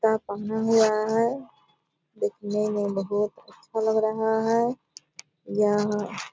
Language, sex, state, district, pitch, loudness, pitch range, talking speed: Hindi, female, Bihar, Purnia, 215 Hz, -25 LUFS, 205-220 Hz, 125 wpm